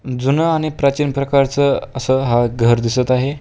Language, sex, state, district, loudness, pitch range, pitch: Marathi, male, Maharashtra, Pune, -16 LUFS, 125-140 Hz, 135 Hz